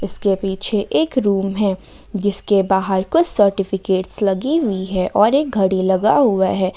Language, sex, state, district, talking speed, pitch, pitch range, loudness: Hindi, female, Jharkhand, Ranchi, 160 wpm, 195 Hz, 190-210 Hz, -17 LUFS